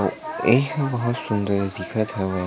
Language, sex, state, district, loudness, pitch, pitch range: Chhattisgarhi, male, Chhattisgarh, Sukma, -23 LUFS, 110 Hz, 100-135 Hz